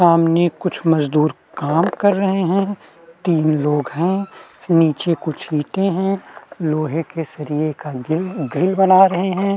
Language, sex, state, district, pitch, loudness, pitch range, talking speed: Hindi, male, Uttarakhand, Tehri Garhwal, 165 Hz, -18 LUFS, 155-190 Hz, 145 wpm